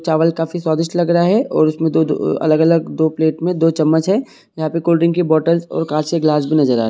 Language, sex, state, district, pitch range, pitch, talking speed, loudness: Hindi, male, Jharkhand, Sahebganj, 155-170 Hz, 165 Hz, 260 wpm, -16 LUFS